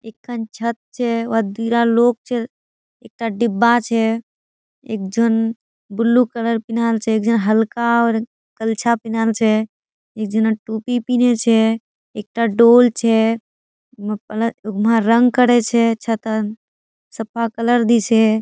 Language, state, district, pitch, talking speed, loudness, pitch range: Surjapuri, Bihar, Kishanganj, 230 Hz, 115 wpm, -17 LUFS, 220-235 Hz